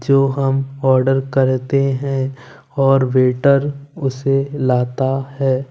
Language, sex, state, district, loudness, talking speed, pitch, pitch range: Hindi, male, Punjab, Kapurthala, -17 LUFS, 105 wpm, 135 Hz, 130-135 Hz